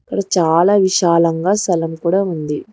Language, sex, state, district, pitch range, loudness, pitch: Telugu, female, Telangana, Hyderabad, 165-195 Hz, -15 LUFS, 175 Hz